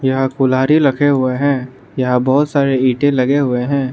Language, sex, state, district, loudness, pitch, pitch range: Hindi, male, Arunachal Pradesh, Lower Dibang Valley, -15 LUFS, 135 Hz, 130-140 Hz